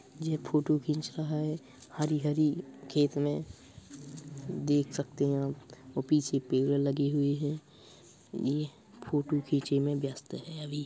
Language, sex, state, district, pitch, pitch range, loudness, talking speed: Hindi, female, Uttar Pradesh, Hamirpur, 145 Hz, 140-150 Hz, -32 LUFS, 145 wpm